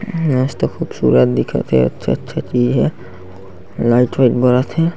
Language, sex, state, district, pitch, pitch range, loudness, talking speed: Chhattisgarhi, male, Chhattisgarh, Sarguja, 120 Hz, 95-130 Hz, -16 LUFS, 130 wpm